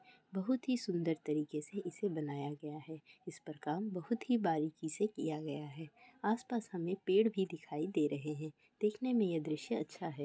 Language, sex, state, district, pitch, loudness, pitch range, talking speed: Hindi, female, Bihar, Kishanganj, 170 Hz, -38 LUFS, 150-210 Hz, 180 wpm